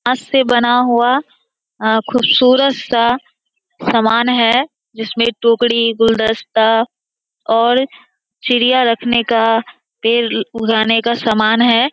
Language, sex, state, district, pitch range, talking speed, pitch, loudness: Hindi, female, Bihar, Kishanganj, 225-250 Hz, 100 wpm, 235 Hz, -14 LUFS